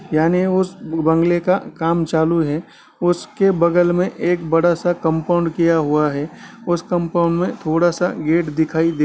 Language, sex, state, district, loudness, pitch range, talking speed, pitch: Hindi, male, Bihar, Gaya, -18 LUFS, 160-175 Hz, 155 wpm, 170 Hz